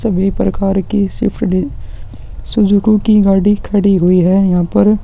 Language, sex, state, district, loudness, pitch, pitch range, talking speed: Hindi, male, Uttarakhand, Tehri Garhwal, -13 LUFS, 200 Hz, 190-210 Hz, 155 wpm